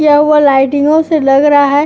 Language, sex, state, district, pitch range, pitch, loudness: Hindi, female, Uttar Pradesh, Etah, 280-300 Hz, 290 Hz, -9 LUFS